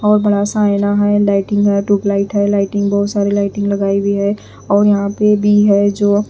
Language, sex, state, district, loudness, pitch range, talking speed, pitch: Hindi, female, Punjab, Pathankot, -14 LUFS, 200-205 Hz, 200 wpm, 205 Hz